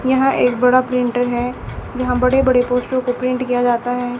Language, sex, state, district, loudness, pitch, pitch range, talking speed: Hindi, female, Haryana, Charkhi Dadri, -17 LUFS, 250 Hz, 245-255 Hz, 200 wpm